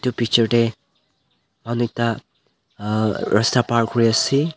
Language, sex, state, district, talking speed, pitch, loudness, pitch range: Nagamese, male, Nagaland, Dimapur, 105 wpm, 115 Hz, -19 LUFS, 110-120 Hz